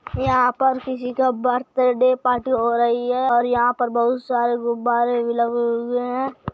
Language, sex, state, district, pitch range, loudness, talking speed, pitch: Hindi, male, Uttar Pradesh, Hamirpur, 240-255 Hz, -20 LUFS, 175 wpm, 245 Hz